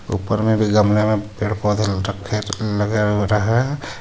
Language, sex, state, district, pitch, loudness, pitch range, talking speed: Hindi, male, Jharkhand, Ranchi, 105 Hz, -19 LUFS, 105-110 Hz, 180 wpm